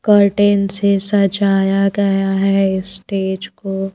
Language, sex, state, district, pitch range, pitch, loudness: Hindi, female, Madhya Pradesh, Bhopal, 195-200 Hz, 195 Hz, -16 LUFS